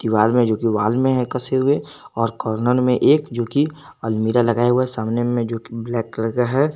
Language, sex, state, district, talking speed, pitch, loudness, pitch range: Hindi, male, Jharkhand, Garhwa, 220 wpm, 120 Hz, -19 LUFS, 115-125 Hz